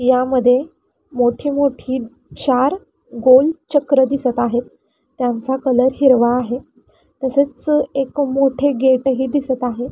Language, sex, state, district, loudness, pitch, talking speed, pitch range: Marathi, female, Maharashtra, Pune, -17 LUFS, 265 Hz, 110 wpm, 250-280 Hz